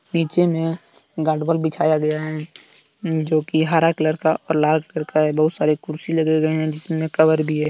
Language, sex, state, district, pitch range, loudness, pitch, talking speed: Hindi, male, Jharkhand, Deoghar, 155-165 Hz, -20 LUFS, 155 Hz, 185 wpm